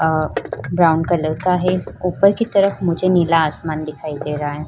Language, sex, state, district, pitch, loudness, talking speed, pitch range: Hindi, female, Uttar Pradesh, Varanasi, 165 Hz, -18 LUFS, 190 wpm, 155-180 Hz